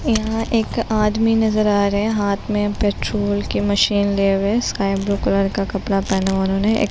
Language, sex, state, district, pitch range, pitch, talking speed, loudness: Hindi, female, Bihar, Gopalganj, 200-215 Hz, 205 Hz, 210 wpm, -19 LUFS